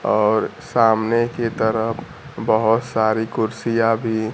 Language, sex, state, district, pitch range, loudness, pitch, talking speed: Hindi, male, Bihar, Kaimur, 110-115 Hz, -19 LUFS, 115 Hz, 110 wpm